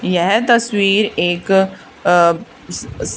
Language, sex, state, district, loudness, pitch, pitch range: Hindi, female, Haryana, Charkhi Dadri, -15 LUFS, 195 Hz, 175-215 Hz